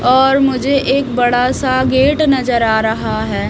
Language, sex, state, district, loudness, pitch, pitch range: Hindi, female, Haryana, Rohtak, -14 LUFS, 260 Hz, 245-270 Hz